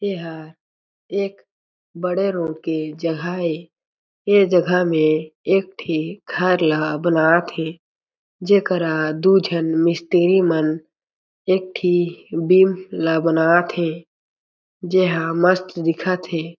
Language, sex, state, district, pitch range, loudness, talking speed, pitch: Chhattisgarhi, male, Chhattisgarh, Jashpur, 160-185 Hz, -19 LUFS, 115 wpm, 170 Hz